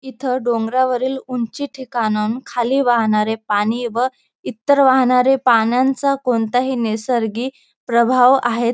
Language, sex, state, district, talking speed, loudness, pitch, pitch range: Marathi, female, Maharashtra, Dhule, 105 wpm, -17 LUFS, 250 Hz, 230-260 Hz